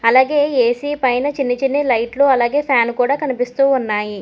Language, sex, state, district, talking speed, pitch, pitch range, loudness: Telugu, female, Telangana, Hyderabad, 155 wpm, 260 Hz, 240-280 Hz, -16 LUFS